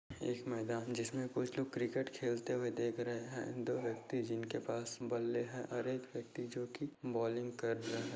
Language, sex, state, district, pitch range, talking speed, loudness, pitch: Hindi, male, Bihar, Jahanabad, 115-125 Hz, 190 wpm, -41 LUFS, 120 Hz